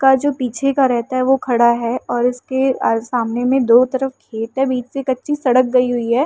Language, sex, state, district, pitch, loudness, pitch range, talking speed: Hindi, female, Uttar Pradesh, Muzaffarnagar, 255 Hz, -17 LUFS, 240-265 Hz, 240 wpm